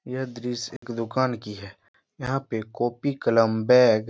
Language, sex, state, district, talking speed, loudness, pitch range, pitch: Hindi, male, Bihar, Jahanabad, 175 wpm, -24 LUFS, 110-130 Hz, 120 Hz